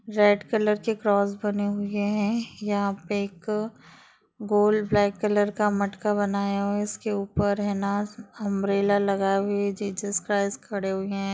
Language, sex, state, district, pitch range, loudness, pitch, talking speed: Hindi, female, Maharashtra, Chandrapur, 200-210 Hz, -25 LUFS, 205 Hz, 105 wpm